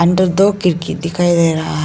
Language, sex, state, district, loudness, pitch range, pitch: Hindi, female, Arunachal Pradesh, Lower Dibang Valley, -14 LUFS, 165-185 Hz, 175 Hz